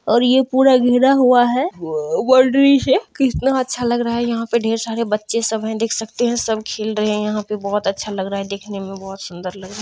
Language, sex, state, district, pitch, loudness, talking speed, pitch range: Maithili, female, Bihar, Madhepura, 230 Hz, -17 LUFS, 255 wpm, 210-255 Hz